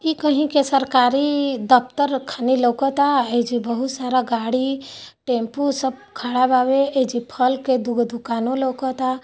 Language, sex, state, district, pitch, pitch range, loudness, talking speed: Hindi, female, Bihar, Gopalganj, 260 Hz, 245-275 Hz, -20 LUFS, 145 wpm